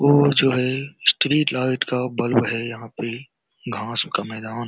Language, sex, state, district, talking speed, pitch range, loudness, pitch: Hindi, male, Jharkhand, Jamtara, 180 wpm, 115-135 Hz, -21 LUFS, 125 Hz